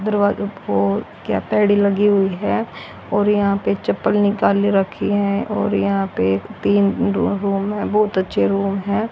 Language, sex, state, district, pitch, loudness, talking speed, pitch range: Hindi, female, Haryana, Rohtak, 200 Hz, -18 LUFS, 165 wpm, 195-205 Hz